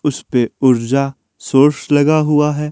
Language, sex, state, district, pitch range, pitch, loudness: Hindi, male, Himachal Pradesh, Shimla, 130-150 Hz, 145 Hz, -15 LUFS